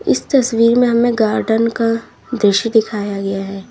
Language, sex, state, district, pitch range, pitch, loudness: Hindi, female, Uttar Pradesh, Lalitpur, 205-235 Hz, 225 Hz, -15 LUFS